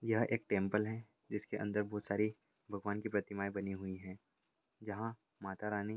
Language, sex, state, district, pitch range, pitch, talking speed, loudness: Hindi, male, Bihar, Gaya, 100-110 Hz, 105 Hz, 180 wpm, -40 LUFS